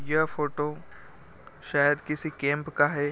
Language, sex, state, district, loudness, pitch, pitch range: Hindi, male, Bihar, Gopalganj, -27 LUFS, 150 Hz, 145-150 Hz